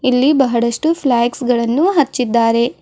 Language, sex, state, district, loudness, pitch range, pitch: Kannada, female, Karnataka, Bidar, -15 LUFS, 235-285 Hz, 250 Hz